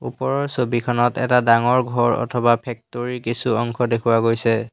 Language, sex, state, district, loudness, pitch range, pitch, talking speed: Assamese, male, Assam, Hailakandi, -19 LUFS, 115-125 Hz, 120 Hz, 140 wpm